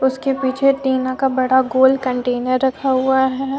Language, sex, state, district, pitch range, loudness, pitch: Hindi, female, Jharkhand, Deoghar, 260-270 Hz, -17 LUFS, 265 Hz